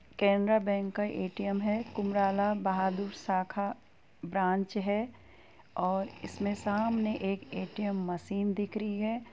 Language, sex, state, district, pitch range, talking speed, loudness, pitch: Hindi, female, Uttar Pradesh, Jyotiba Phule Nagar, 195-210 Hz, 120 wpm, -32 LUFS, 200 Hz